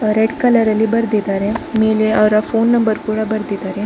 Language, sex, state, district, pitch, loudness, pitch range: Kannada, female, Karnataka, Dakshina Kannada, 220 Hz, -15 LUFS, 215-225 Hz